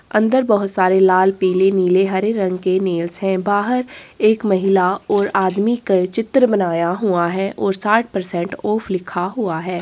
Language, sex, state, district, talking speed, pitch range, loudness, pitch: Hindi, female, Chhattisgarh, Korba, 170 wpm, 185-210 Hz, -17 LUFS, 195 Hz